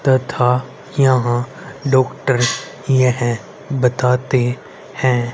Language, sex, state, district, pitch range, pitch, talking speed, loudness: Hindi, male, Haryana, Rohtak, 125-135 Hz, 130 Hz, 65 wpm, -17 LUFS